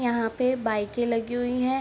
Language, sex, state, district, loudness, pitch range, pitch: Hindi, female, Bihar, Begusarai, -26 LUFS, 230-250 Hz, 240 Hz